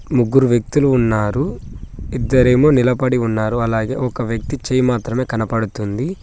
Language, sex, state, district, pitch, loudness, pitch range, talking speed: Telugu, male, Telangana, Mahabubabad, 125 Hz, -17 LUFS, 115-130 Hz, 115 wpm